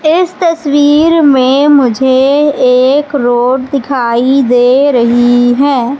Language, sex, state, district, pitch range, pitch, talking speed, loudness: Hindi, female, Madhya Pradesh, Katni, 245-290 Hz, 270 Hz, 100 wpm, -9 LUFS